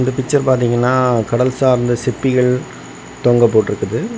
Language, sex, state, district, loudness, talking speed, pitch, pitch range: Tamil, male, Tamil Nadu, Kanyakumari, -15 LUFS, 100 wpm, 125 Hz, 120-130 Hz